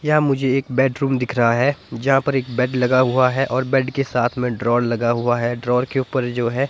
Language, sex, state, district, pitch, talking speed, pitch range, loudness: Hindi, male, Himachal Pradesh, Shimla, 130 Hz, 260 wpm, 120-135 Hz, -19 LUFS